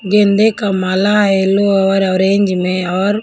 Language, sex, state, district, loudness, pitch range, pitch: Hindi, female, Punjab, Kapurthala, -13 LUFS, 190-205 Hz, 195 Hz